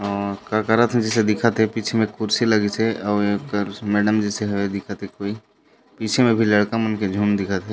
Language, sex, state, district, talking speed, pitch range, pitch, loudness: Chhattisgarhi, male, Chhattisgarh, Raigarh, 195 wpm, 100-110 Hz, 105 Hz, -21 LUFS